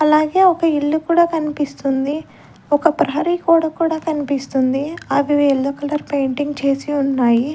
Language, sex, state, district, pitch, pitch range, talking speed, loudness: Telugu, female, Andhra Pradesh, Sri Satya Sai, 290 Hz, 275-320 Hz, 125 wpm, -18 LUFS